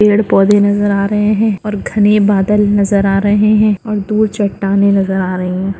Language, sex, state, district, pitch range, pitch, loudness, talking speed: Hindi, female, Maharashtra, Dhule, 195-210 Hz, 205 Hz, -12 LUFS, 205 wpm